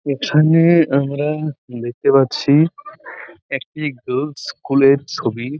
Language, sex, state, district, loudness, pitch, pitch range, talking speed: Bengali, male, West Bengal, Purulia, -17 LUFS, 140 Hz, 135-155 Hz, 95 wpm